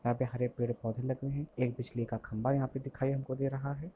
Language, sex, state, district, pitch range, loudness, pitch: Hindi, male, Bihar, Lakhisarai, 120-135 Hz, -35 LUFS, 130 Hz